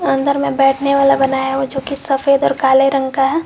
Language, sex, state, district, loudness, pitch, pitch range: Hindi, female, Jharkhand, Garhwa, -15 LUFS, 275 Hz, 270-275 Hz